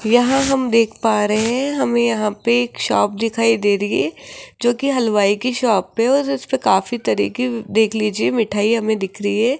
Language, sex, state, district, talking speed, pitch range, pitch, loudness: Hindi, female, Rajasthan, Jaipur, 185 wpm, 210-250 Hz, 230 Hz, -18 LUFS